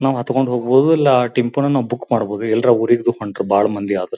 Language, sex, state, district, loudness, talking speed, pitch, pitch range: Kannada, male, Karnataka, Belgaum, -17 LUFS, 200 wpm, 120 Hz, 110-130 Hz